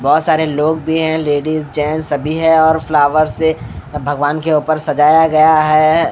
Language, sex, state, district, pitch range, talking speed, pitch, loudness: Hindi, male, Bihar, Katihar, 150-160 Hz, 175 wpm, 155 Hz, -13 LUFS